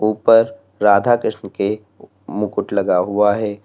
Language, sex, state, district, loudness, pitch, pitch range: Hindi, male, Uttar Pradesh, Lalitpur, -17 LUFS, 105 Hz, 100-115 Hz